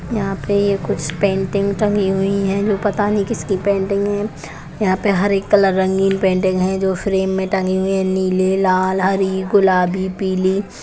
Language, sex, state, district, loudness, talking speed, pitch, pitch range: Hindi, female, Chhattisgarh, Kabirdham, -17 LUFS, 185 wpm, 195 Hz, 190-200 Hz